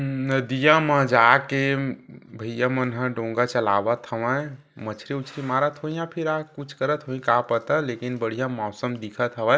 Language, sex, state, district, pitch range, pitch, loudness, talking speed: Chhattisgarhi, male, Chhattisgarh, Kabirdham, 120-145 Hz, 130 Hz, -23 LUFS, 165 wpm